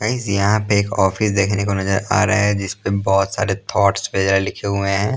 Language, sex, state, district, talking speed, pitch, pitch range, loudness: Hindi, male, Punjab, Pathankot, 245 wpm, 100 Hz, 95-105 Hz, -18 LUFS